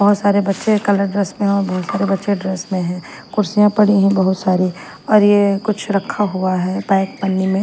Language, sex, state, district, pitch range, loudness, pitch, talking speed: Hindi, female, Chandigarh, Chandigarh, 190-205 Hz, -16 LUFS, 195 Hz, 220 wpm